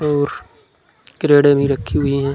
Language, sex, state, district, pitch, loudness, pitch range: Hindi, male, Uttar Pradesh, Muzaffarnagar, 140 Hz, -16 LUFS, 140-145 Hz